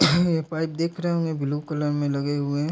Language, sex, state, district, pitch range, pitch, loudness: Hindi, male, Bihar, Darbhanga, 145-165 Hz, 155 Hz, -25 LUFS